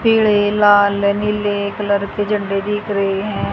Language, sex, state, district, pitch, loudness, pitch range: Hindi, female, Haryana, Charkhi Dadri, 205 Hz, -16 LUFS, 200-210 Hz